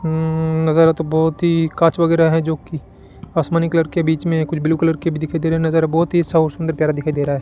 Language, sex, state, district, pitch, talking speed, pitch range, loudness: Hindi, male, Rajasthan, Bikaner, 160 Hz, 265 wpm, 160-165 Hz, -17 LUFS